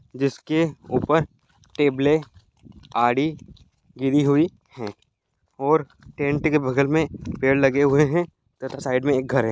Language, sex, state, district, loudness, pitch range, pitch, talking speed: Hindi, male, Bihar, Gopalganj, -22 LUFS, 130-150 Hz, 135 Hz, 140 wpm